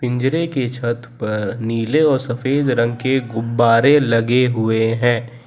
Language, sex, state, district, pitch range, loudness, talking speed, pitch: Hindi, male, Gujarat, Valsad, 115-130 Hz, -17 LUFS, 145 wpm, 120 Hz